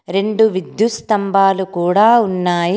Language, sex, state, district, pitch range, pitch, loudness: Telugu, female, Telangana, Komaram Bheem, 180-215 Hz, 195 Hz, -15 LUFS